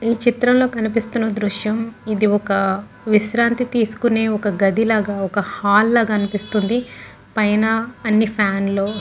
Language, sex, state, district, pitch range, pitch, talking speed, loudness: Telugu, female, Andhra Pradesh, Guntur, 205-230 Hz, 215 Hz, 135 wpm, -18 LUFS